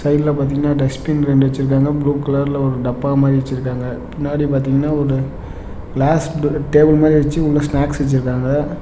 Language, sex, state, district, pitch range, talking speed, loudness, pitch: Tamil, male, Tamil Nadu, Namakkal, 135-150 Hz, 145 wpm, -16 LUFS, 140 Hz